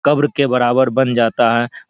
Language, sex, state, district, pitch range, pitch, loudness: Maithili, male, Bihar, Araria, 120-140 Hz, 125 Hz, -15 LUFS